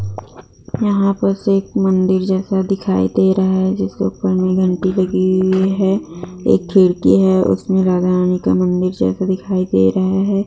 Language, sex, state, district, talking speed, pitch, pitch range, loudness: Hindi, female, Bihar, Kishanganj, 160 wpm, 185 Hz, 180-190 Hz, -16 LUFS